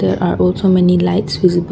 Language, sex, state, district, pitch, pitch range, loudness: English, female, Assam, Kamrup Metropolitan, 180 Hz, 175-185 Hz, -14 LUFS